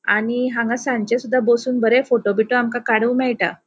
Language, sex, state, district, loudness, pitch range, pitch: Konkani, female, Goa, North and South Goa, -19 LUFS, 230-250 Hz, 240 Hz